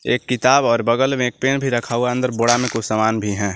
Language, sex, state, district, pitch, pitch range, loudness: Hindi, male, Jharkhand, Garhwa, 120 Hz, 115-125 Hz, -18 LUFS